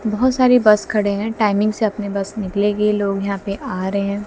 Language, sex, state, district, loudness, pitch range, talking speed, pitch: Hindi, female, Haryana, Jhajjar, -18 LUFS, 200-215 Hz, 225 wpm, 205 Hz